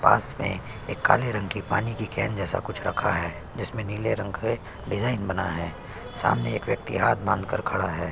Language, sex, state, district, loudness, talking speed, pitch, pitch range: Hindi, male, Chhattisgarh, Sukma, -27 LUFS, 200 wpm, 100 Hz, 95-110 Hz